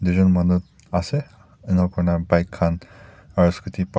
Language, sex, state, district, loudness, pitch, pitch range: Nagamese, male, Nagaland, Dimapur, -21 LUFS, 90 Hz, 85-95 Hz